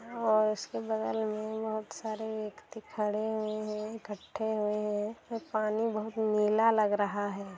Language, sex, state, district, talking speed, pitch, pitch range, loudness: Hindi, male, Bihar, Sitamarhi, 150 wpm, 215 Hz, 210-220 Hz, -32 LUFS